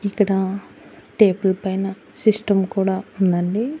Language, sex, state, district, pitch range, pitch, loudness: Telugu, female, Andhra Pradesh, Annamaya, 190-205 Hz, 195 Hz, -20 LUFS